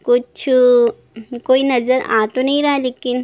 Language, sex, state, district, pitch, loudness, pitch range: Hindi, female, Jharkhand, Jamtara, 250 Hz, -15 LUFS, 245-260 Hz